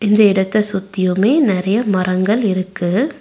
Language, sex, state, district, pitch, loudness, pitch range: Tamil, female, Tamil Nadu, Nilgiris, 200 Hz, -16 LUFS, 185-215 Hz